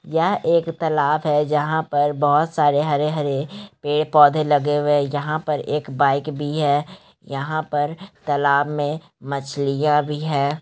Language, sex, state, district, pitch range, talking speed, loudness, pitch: Hindi, male, Bihar, Gaya, 145-155 Hz, 145 wpm, -20 LUFS, 150 Hz